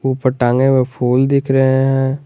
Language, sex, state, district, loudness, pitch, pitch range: Hindi, male, Jharkhand, Garhwa, -14 LUFS, 135 Hz, 130-135 Hz